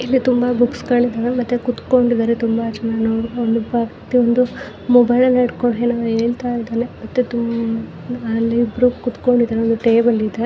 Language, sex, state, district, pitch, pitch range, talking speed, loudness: Kannada, female, Karnataka, Mysore, 240 Hz, 230-245 Hz, 120 wpm, -17 LUFS